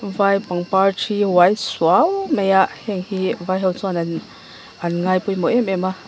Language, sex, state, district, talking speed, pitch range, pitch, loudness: Mizo, female, Mizoram, Aizawl, 180 wpm, 180-200 Hz, 190 Hz, -19 LUFS